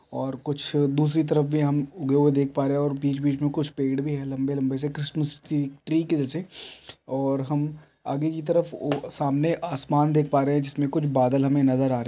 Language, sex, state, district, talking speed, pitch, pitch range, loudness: Hindi, male, Chhattisgarh, Balrampur, 240 wpm, 145 Hz, 140-150 Hz, -25 LUFS